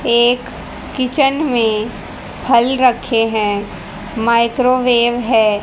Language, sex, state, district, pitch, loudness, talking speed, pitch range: Hindi, female, Haryana, Jhajjar, 235 Hz, -15 LUFS, 85 wpm, 220-250 Hz